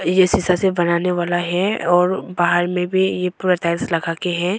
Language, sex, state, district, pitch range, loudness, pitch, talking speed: Hindi, female, Arunachal Pradesh, Longding, 175-185 Hz, -18 LUFS, 180 Hz, 195 wpm